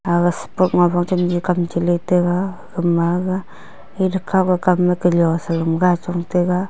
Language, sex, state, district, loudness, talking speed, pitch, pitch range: Wancho, female, Arunachal Pradesh, Longding, -18 LUFS, 135 wpm, 180 Hz, 175-180 Hz